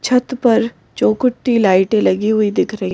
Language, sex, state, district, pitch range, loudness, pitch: Hindi, female, Madhya Pradesh, Bhopal, 195-245 Hz, -15 LUFS, 220 Hz